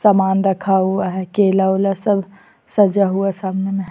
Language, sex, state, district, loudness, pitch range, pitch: Hindi, female, Chhattisgarh, Sukma, -17 LUFS, 190-200 Hz, 195 Hz